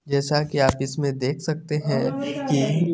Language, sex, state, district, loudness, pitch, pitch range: Hindi, male, Chandigarh, Chandigarh, -23 LUFS, 140 Hz, 135-150 Hz